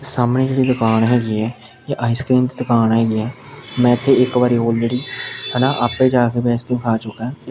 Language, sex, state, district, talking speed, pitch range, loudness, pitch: Punjabi, male, Punjab, Pathankot, 190 wpm, 115-130 Hz, -17 LUFS, 120 Hz